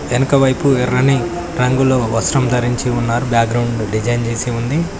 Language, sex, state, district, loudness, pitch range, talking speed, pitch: Telugu, male, Telangana, Mahabubabad, -16 LUFS, 115-135 Hz, 120 wpm, 125 Hz